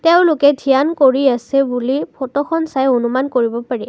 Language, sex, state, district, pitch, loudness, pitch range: Assamese, female, Assam, Kamrup Metropolitan, 270 Hz, -15 LUFS, 250-285 Hz